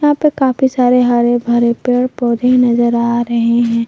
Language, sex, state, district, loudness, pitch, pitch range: Hindi, female, Jharkhand, Palamu, -13 LUFS, 240 Hz, 235-250 Hz